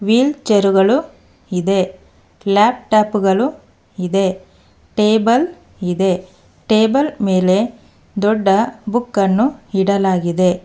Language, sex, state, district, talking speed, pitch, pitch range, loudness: Kannada, female, Karnataka, Bangalore, 90 wpm, 200 Hz, 190-230 Hz, -16 LUFS